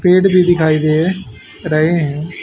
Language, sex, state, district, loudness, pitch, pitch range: Hindi, male, Haryana, Rohtak, -14 LUFS, 170 Hz, 155-180 Hz